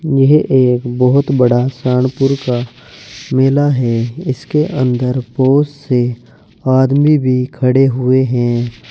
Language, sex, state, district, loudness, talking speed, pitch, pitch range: Hindi, male, Uttar Pradesh, Saharanpur, -13 LUFS, 115 wpm, 130 Hz, 125-135 Hz